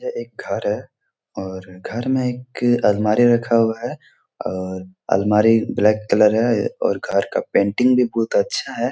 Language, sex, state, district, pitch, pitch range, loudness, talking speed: Hindi, male, Bihar, Jahanabad, 110 Hz, 100-120 Hz, -19 LUFS, 170 wpm